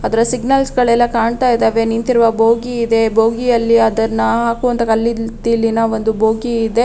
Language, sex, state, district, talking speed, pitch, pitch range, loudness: Kannada, female, Karnataka, Raichur, 130 wpm, 230 Hz, 225-240 Hz, -14 LUFS